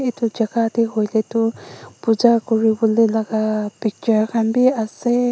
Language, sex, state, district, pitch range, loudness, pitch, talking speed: Nagamese, female, Nagaland, Dimapur, 220-235 Hz, -19 LUFS, 225 Hz, 145 wpm